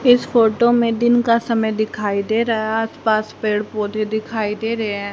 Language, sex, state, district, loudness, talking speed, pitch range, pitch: Hindi, female, Haryana, Charkhi Dadri, -18 LUFS, 200 wpm, 215-230 Hz, 220 Hz